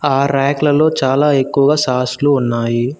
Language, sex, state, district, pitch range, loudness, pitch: Telugu, male, Telangana, Mahabubabad, 125-145 Hz, -14 LUFS, 140 Hz